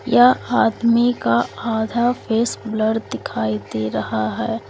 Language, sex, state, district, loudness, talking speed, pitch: Hindi, female, Uttar Pradesh, Lalitpur, -19 LUFS, 130 wpm, 220 Hz